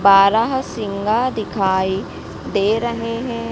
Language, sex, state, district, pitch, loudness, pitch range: Hindi, female, Madhya Pradesh, Dhar, 220 Hz, -19 LUFS, 195-230 Hz